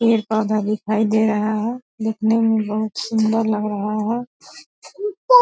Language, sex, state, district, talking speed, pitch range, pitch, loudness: Hindi, female, Bihar, Purnia, 155 wpm, 215-230 Hz, 220 Hz, -20 LUFS